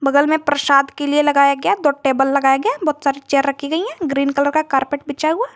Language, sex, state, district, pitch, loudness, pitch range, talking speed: Hindi, female, Jharkhand, Garhwa, 285 Hz, -17 LUFS, 275-305 Hz, 250 wpm